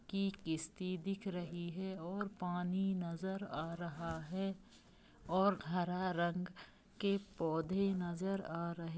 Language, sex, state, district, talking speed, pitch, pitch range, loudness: Hindi, female, Jharkhand, Jamtara, 125 wpm, 180 Hz, 170-195 Hz, -40 LUFS